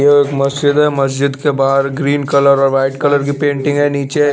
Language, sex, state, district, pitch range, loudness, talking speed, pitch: Hindi, male, Chandigarh, Chandigarh, 140-145 Hz, -13 LUFS, 210 wpm, 140 Hz